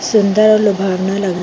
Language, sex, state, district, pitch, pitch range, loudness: Hindi, female, Chhattisgarh, Bilaspur, 200 Hz, 190-215 Hz, -13 LUFS